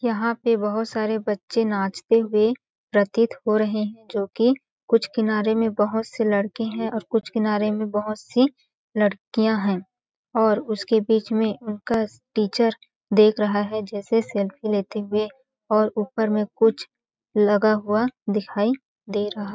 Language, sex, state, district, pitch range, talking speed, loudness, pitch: Hindi, female, Chhattisgarh, Balrampur, 210-225 Hz, 150 wpm, -23 LUFS, 215 Hz